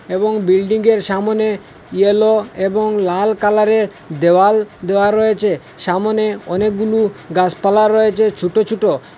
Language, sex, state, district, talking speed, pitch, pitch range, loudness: Bengali, male, Assam, Hailakandi, 120 wpm, 210 Hz, 195-215 Hz, -15 LUFS